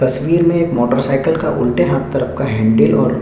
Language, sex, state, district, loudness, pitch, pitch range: Hindi, male, Chhattisgarh, Sukma, -15 LUFS, 135 Hz, 120-170 Hz